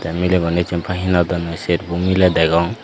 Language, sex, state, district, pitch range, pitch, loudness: Chakma, male, Tripura, Dhalai, 85-90 Hz, 85 Hz, -17 LUFS